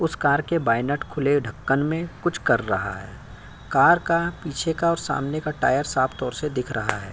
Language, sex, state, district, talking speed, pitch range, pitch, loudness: Hindi, male, Uttar Pradesh, Jyotiba Phule Nagar, 220 wpm, 125-160 Hz, 145 Hz, -23 LUFS